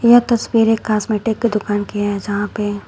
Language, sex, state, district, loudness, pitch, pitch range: Hindi, female, Uttar Pradesh, Shamli, -17 LUFS, 215 Hz, 205-225 Hz